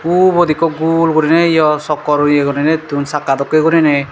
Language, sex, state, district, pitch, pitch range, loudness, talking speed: Chakma, male, Tripura, Dhalai, 155 Hz, 145-165 Hz, -13 LUFS, 175 wpm